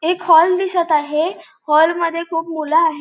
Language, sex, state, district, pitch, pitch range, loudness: Marathi, female, Goa, North and South Goa, 330 Hz, 315-345 Hz, -16 LUFS